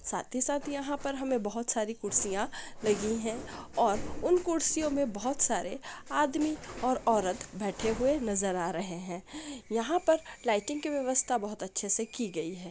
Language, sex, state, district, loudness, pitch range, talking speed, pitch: Hindi, female, Andhra Pradesh, Guntur, -31 LUFS, 210-285 Hz, 170 wpm, 235 Hz